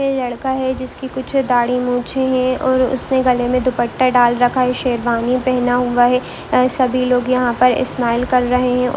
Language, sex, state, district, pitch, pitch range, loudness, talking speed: Hindi, female, Bihar, Muzaffarpur, 250 Hz, 245-255 Hz, -16 LUFS, 205 wpm